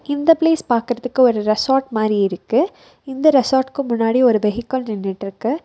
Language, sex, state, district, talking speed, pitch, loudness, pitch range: Tamil, female, Tamil Nadu, Nilgiris, 140 wpm, 245 Hz, -18 LUFS, 215-270 Hz